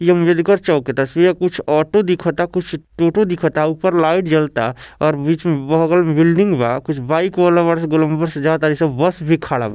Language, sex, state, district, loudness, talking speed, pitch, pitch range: Bhojpuri, male, Bihar, Gopalganj, -16 LUFS, 220 wpm, 165 Hz, 155-175 Hz